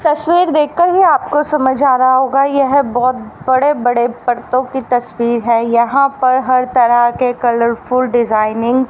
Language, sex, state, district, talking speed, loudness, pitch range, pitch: Hindi, female, Haryana, Rohtak, 160 wpm, -13 LUFS, 240-275 Hz, 255 Hz